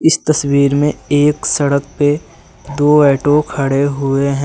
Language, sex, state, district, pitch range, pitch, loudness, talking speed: Hindi, male, Uttar Pradesh, Lucknow, 140-150 Hz, 145 Hz, -14 LUFS, 150 wpm